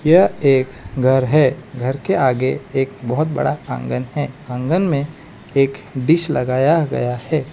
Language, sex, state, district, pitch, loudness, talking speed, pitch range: Hindi, male, Arunachal Pradesh, Lower Dibang Valley, 135 Hz, -18 LUFS, 150 wpm, 130-155 Hz